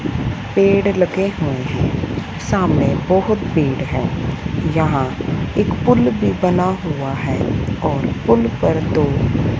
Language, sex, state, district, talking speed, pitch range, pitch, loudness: Hindi, female, Punjab, Fazilka, 120 wpm, 130-185 Hz, 150 Hz, -18 LUFS